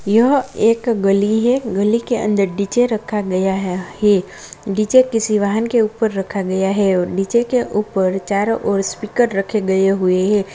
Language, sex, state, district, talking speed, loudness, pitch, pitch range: Hindi, female, Bihar, Darbhanga, 170 wpm, -17 LUFS, 210 Hz, 195-225 Hz